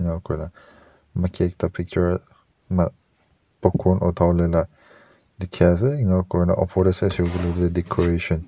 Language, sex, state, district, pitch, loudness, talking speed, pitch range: Nagamese, male, Nagaland, Dimapur, 90 Hz, -22 LUFS, 135 wpm, 85-95 Hz